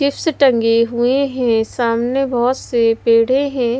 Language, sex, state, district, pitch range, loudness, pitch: Hindi, female, Bihar, West Champaran, 230-270 Hz, -16 LUFS, 245 Hz